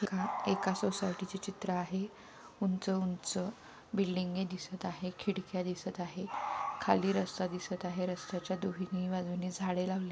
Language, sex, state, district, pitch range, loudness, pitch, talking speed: Marathi, female, Maharashtra, Pune, 180-190 Hz, -36 LUFS, 185 Hz, 120 wpm